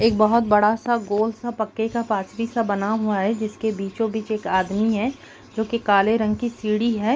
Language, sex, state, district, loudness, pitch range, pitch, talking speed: Hindi, female, Bihar, East Champaran, -22 LUFS, 210-230 Hz, 220 Hz, 210 wpm